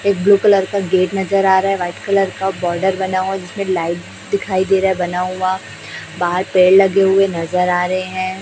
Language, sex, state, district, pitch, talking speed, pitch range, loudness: Hindi, female, Chhattisgarh, Raipur, 190 Hz, 220 wpm, 180-195 Hz, -16 LUFS